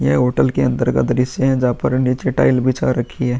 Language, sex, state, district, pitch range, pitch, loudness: Hindi, male, Uttar Pradesh, Muzaffarnagar, 120-130 Hz, 125 Hz, -17 LUFS